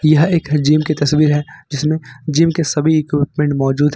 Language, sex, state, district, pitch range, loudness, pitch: Hindi, male, Jharkhand, Ranchi, 145-155 Hz, -16 LUFS, 150 Hz